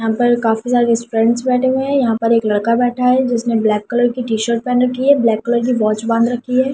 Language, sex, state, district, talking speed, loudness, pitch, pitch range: Hindi, female, Delhi, New Delhi, 250 wpm, -15 LUFS, 240 Hz, 225-250 Hz